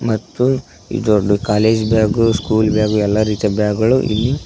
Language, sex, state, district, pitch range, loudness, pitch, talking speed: Kannada, male, Karnataka, Koppal, 105-115 Hz, -16 LUFS, 110 Hz, 175 wpm